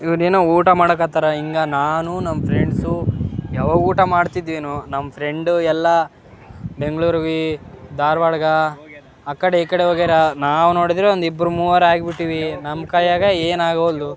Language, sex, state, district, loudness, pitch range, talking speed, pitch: Kannada, male, Karnataka, Raichur, -17 LUFS, 155-175 Hz, 135 wpm, 165 Hz